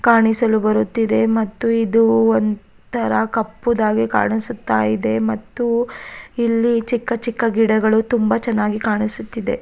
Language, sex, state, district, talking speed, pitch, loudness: Kannada, female, Karnataka, Raichur, 100 wpm, 220 Hz, -18 LUFS